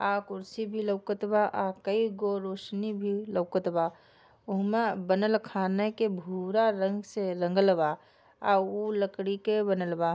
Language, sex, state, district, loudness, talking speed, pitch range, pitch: Bhojpuri, female, Bihar, Gopalganj, -29 LUFS, 155 wpm, 190-210 Hz, 200 Hz